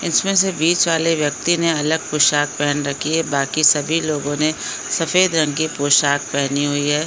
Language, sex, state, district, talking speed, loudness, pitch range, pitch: Hindi, female, Chhattisgarh, Korba, 185 wpm, -17 LUFS, 145-165 Hz, 150 Hz